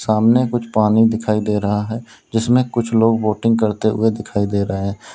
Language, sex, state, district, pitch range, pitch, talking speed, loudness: Hindi, male, Uttar Pradesh, Lalitpur, 105-115 Hz, 110 Hz, 200 wpm, -17 LUFS